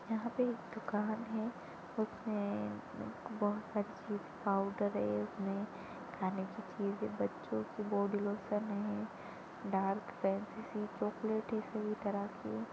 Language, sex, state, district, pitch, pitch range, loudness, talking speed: Hindi, female, Chhattisgarh, Sarguja, 205 Hz, 195-220 Hz, -39 LUFS, 105 wpm